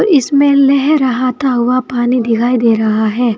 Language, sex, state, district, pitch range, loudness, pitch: Hindi, female, Uttar Pradesh, Saharanpur, 240-275 Hz, -12 LUFS, 250 Hz